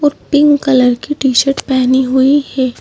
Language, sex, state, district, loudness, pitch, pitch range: Hindi, female, Madhya Pradesh, Bhopal, -12 LUFS, 265 Hz, 260-290 Hz